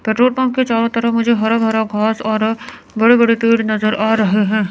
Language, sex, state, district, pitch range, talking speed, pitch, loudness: Hindi, female, Chandigarh, Chandigarh, 220-230 Hz, 215 wpm, 225 Hz, -15 LUFS